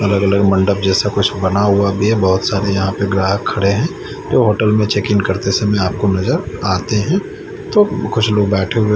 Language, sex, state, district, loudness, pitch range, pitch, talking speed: Hindi, male, Chandigarh, Chandigarh, -15 LUFS, 95-105 Hz, 100 Hz, 205 wpm